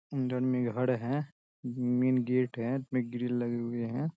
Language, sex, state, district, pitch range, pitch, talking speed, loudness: Hindi, male, Bihar, Saharsa, 120-130 Hz, 125 Hz, 175 wpm, -32 LUFS